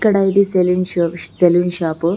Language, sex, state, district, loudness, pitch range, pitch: Telugu, female, Telangana, Karimnagar, -16 LUFS, 170-190 Hz, 180 Hz